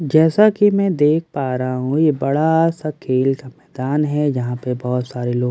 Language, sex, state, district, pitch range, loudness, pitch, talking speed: Hindi, male, Bihar, Katihar, 130-160 Hz, -18 LUFS, 145 Hz, 240 wpm